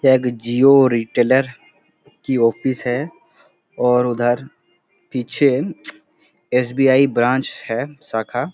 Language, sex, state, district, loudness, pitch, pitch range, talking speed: Hindi, male, Bihar, Supaul, -18 LUFS, 125 Hz, 120-135 Hz, 100 wpm